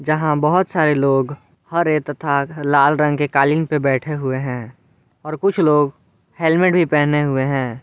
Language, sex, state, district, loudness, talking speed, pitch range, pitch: Hindi, male, Jharkhand, Garhwa, -17 LUFS, 170 wpm, 135-155 Hz, 145 Hz